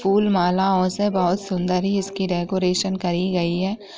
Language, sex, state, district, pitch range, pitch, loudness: Hindi, female, Chhattisgarh, Sukma, 180-195 Hz, 185 Hz, -21 LUFS